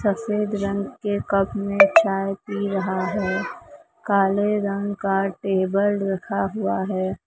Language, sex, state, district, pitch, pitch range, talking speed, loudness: Hindi, male, Maharashtra, Mumbai Suburban, 200 Hz, 195-205 Hz, 130 wpm, -22 LUFS